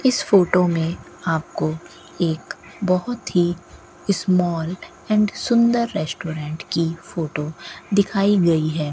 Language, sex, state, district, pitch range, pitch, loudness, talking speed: Hindi, female, Rajasthan, Bikaner, 165-200 Hz, 175 Hz, -21 LUFS, 110 wpm